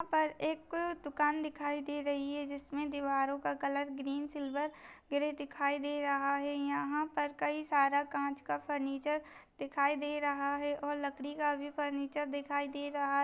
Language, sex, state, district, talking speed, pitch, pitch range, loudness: Hindi, female, Uttar Pradesh, Jyotiba Phule Nagar, 175 wpm, 285 Hz, 280-295 Hz, -36 LUFS